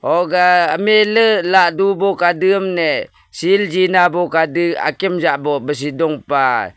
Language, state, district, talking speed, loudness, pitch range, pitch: Nyishi, Arunachal Pradesh, Papum Pare, 95 wpm, -15 LUFS, 160-195 Hz, 175 Hz